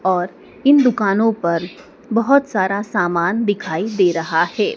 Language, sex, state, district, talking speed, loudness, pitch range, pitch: Hindi, female, Madhya Pradesh, Dhar, 140 wpm, -17 LUFS, 175-225 Hz, 200 Hz